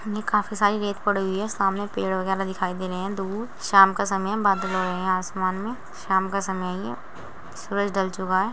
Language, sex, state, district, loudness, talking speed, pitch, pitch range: Hindi, female, Uttar Pradesh, Muzaffarnagar, -24 LUFS, 230 wpm, 195 Hz, 190-205 Hz